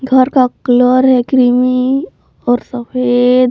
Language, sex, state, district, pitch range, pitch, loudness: Hindi, female, Jharkhand, Palamu, 245-260 Hz, 255 Hz, -12 LUFS